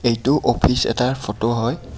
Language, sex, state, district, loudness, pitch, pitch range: Assamese, male, Assam, Kamrup Metropolitan, -19 LUFS, 120 Hz, 115-130 Hz